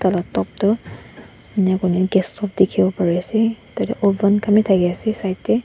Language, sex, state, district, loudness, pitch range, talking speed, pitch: Nagamese, female, Nagaland, Dimapur, -19 LUFS, 185-210 Hz, 190 wpm, 195 Hz